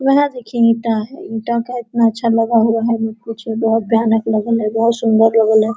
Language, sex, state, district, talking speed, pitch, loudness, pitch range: Hindi, female, Bihar, Araria, 220 wpm, 225 Hz, -16 LUFS, 225-235 Hz